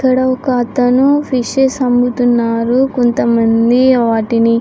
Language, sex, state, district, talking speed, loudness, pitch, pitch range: Telugu, female, Andhra Pradesh, Srikakulam, 115 wpm, -12 LUFS, 245 Hz, 235-260 Hz